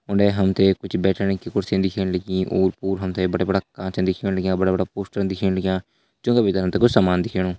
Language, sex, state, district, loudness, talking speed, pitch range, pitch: Hindi, male, Uttarakhand, Uttarkashi, -21 LUFS, 220 wpm, 95-100 Hz, 95 Hz